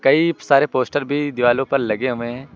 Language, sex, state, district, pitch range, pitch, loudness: Hindi, male, Uttar Pradesh, Lucknow, 120-145 Hz, 135 Hz, -19 LUFS